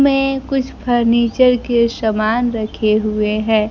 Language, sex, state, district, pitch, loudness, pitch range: Hindi, female, Bihar, Kaimur, 235 Hz, -16 LUFS, 215-250 Hz